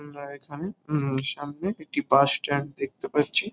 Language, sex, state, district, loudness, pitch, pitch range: Bengali, male, West Bengal, Kolkata, -27 LUFS, 145 Hz, 140-180 Hz